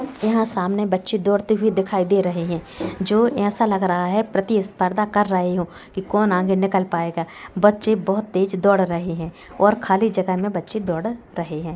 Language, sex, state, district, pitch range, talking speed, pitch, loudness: Hindi, female, Bihar, Gopalganj, 180-210 Hz, 190 wpm, 195 Hz, -21 LUFS